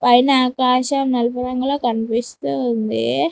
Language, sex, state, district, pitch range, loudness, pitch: Telugu, female, Telangana, Mahabubabad, 225-255 Hz, -18 LUFS, 245 Hz